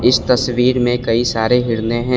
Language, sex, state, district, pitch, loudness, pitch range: Hindi, male, Assam, Kamrup Metropolitan, 125 Hz, -16 LUFS, 115-125 Hz